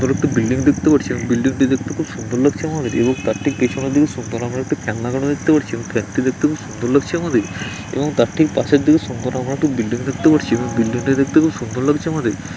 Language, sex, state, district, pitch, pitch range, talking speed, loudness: Bengali, male, West Bengal, Dakshin Dinajpur, 135 Hz, 120-150 Hz, 270 wpm, -18 LUFS